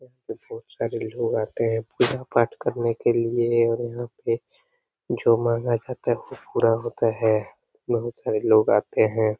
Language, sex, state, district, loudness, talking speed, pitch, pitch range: Hindi, male, Bihar, Lakhisarai, -24 LUFS, 180 wpm, 120 Hz, 115-125 Hz